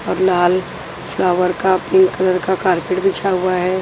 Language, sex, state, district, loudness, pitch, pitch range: Hindi, female, Punjab, Pathankot, -16 LUFS, 185 Hz, 180-190 Hz